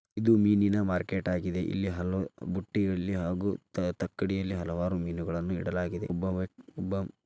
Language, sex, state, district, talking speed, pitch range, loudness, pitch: Kannada, male, Karnataka, Dharwad, 115 wpm, 90-95 Hz, -31 LUFS, 95 Hz